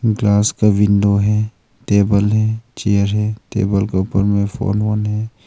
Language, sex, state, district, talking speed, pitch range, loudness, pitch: Hindi, male, Arunachal Pradesh, Longding, 165 wpm, 100-110 Hz, -16 LUFS, 105 Hz